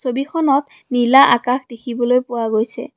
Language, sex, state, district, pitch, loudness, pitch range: Assamese, female, Assam, Kamrup Metropolitan, 250 Hz, -16 LUFS, 240-275 Hz